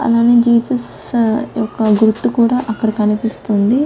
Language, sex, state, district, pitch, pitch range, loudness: Telugu, female, Telangana, Karimnagar, 230 Hz, 220-235 Hz, -15 LUFS